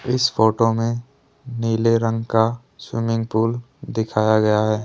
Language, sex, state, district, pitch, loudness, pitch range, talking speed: Hindi, male, Rajasthan, Jaipur, 115 Hz, -20 LUFS, 110-120 Hz, 135 wpm